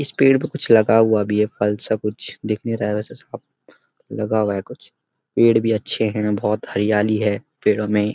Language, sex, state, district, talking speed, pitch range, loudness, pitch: Hindi, male, Uttarakhand, Uttarkashi, 215 wpm, 105-115 Hz, -19 LUFS, 105 Hz